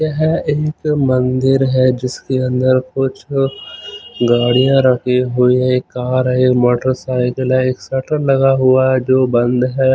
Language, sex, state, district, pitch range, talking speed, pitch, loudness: Hindi, male, Chandigarh, Chandigarh, 125-135 Hz, 145 wpm, 130 Hz, -15 LUFS